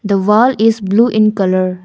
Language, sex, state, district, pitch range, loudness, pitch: English, female, Arunachal Pradesh, Longding, 190-225 Hz, -12 LUFS, 210 Hz